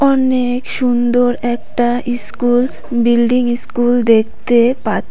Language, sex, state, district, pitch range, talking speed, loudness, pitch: Bengali, female, West Bengal, Cooch Behar, 240-250 Hz, 95 wpm, -15 LUFS, 245 Hz